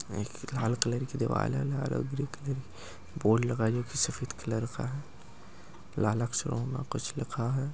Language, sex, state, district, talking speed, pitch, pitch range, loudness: Hindi, male, Maharashtra, Chandrapur, 165 wpm, 125 Hz, 115-140 Hz, -32 LUFS